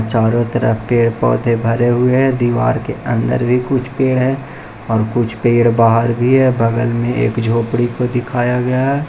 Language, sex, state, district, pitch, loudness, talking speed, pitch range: Hindi, male, Arunachal Pradesh, Lower Dibang Valley, 120 Hz, -15 LUFS, 180 wpm, 115-125 Hz